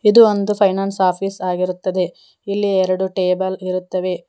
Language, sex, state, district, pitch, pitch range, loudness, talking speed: Kannada, female, Karnataka, Koppal, 185 Hz, 185-200 Hz, -18 LUFS, 125 wpm